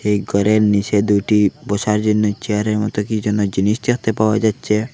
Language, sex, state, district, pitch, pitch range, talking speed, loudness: Bengali, male, Assam, Hailakandi, 105 Hz, 105-110 Hz, 170 wpm, -17 LUFS